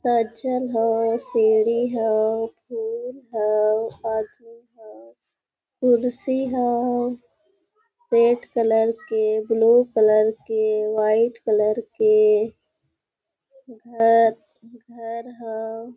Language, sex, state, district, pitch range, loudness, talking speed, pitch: Hindi, female, Jharkhand, Sahebganj, 220-245 Hz, -21 LUFS, 85 wpm, 230 Hz